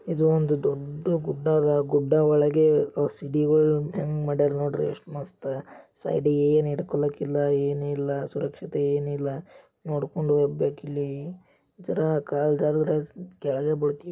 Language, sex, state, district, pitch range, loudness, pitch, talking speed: Kannada, male, Karnataka, Gulbarga, 145-155 Hz, -25 LUFS, 145 Hz, 120 wpm